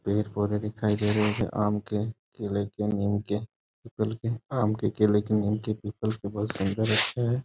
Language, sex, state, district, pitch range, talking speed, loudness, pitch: Hindi, male, Bihar, East Champaran, 105-110 Hz, 185 wpm, -28 LUFS, 105 Hz